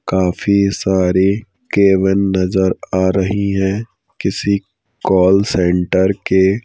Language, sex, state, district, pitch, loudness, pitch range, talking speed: Hindi, male, Madhya Pradesh, Bhopal, 95 Hz, -15 LUFS, 95-100 Hz, 100 wpm